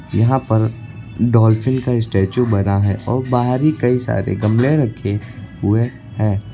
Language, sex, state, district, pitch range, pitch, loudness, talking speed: Hindi, male, Uttar Pradesh, Lucknow, 105-125 Hz, 115 Hz, -17 LUFS, 145 wpm